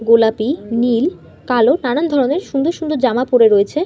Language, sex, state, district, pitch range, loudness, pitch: Bengali, female, West Bengal, North 24 Parganas, 230-300 Hz, -15 LUFS, 255 Hz